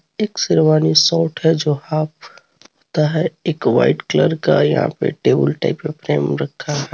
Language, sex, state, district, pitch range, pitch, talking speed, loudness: Hindi, male, Jharkhand, Garhwa, 145-160 Hz, 155 Hz, 175 wpm, -17 LUFS